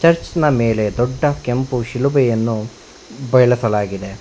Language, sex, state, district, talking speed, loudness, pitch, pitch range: Kannada, male, Karnataka, Bangalore, 85 wpm, -17 LUFS, 125 Hz, 110-135 Hz